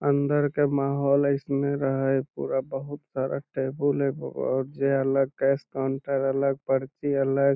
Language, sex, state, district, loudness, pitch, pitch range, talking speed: Magahi, male, Bihar, Lakhisarai, -26 LUFS, 140 Hz, 135-140 Hz, 145 wpm